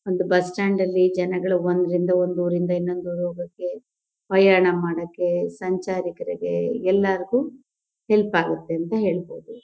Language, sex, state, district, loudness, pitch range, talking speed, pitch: Kannada, female, Karnataka, Mysore, -22 LUFS, 175-190 Hz, 120 wpm, 180 Hz